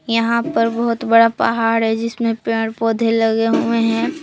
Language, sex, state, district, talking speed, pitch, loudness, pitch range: Hindi, female, Jharkhand, Palamu, 170 wpm, 230 Hz, -17 LUFS, 225-230 Hz